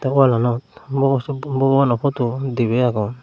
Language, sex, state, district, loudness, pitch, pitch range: Chakma, male, Tripura, Unakoti, -19 LUFS, 130 Hz, 120-135 Hz